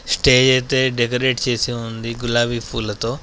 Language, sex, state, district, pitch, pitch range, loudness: Telugu, male, Telangana, Adilabad, 120 Hz, 115-130 Hz, -18 LUFS